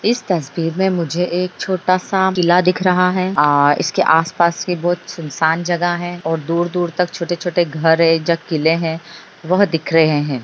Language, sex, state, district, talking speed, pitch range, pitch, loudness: Hindi, female, Bihar, Bhagalpur, 185 wpm, 165-180 Hz, 175 Hz, -17 LUFS